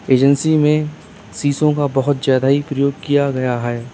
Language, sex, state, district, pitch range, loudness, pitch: Hindi, male, Uttar Pradesh, Lalitpur, 130-145 Hz, -16 LUFS, 140 Hz